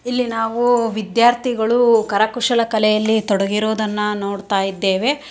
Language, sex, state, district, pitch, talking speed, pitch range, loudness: Kannada, female, Karnataka, Raichur, 220 Hz, 90 wpm, 210-240 Hz, -17 LUFS